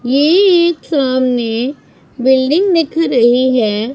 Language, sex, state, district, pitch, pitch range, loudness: Hindi, female, Punjab, Pathankot, 265 Hz, 245-330 Hz, -13 LUFS